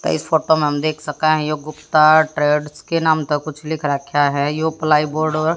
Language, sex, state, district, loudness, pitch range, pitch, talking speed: Hindi, female, Haryana, Jhajjar, -18 LUFS, 150-155 Hz, 155 Hz, 225 wpm